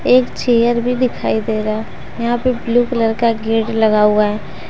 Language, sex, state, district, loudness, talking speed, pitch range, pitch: Hindi, female, Jharkhand, Deoghar, -16 LUFS, 190 wpm, 220-240 Hz, 230 Hz